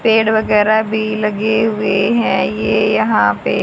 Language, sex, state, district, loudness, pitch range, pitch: Hindi, female, Haryana, Charkhi Dadri, -15 LUFS, 195-220 Hz, 215 Hz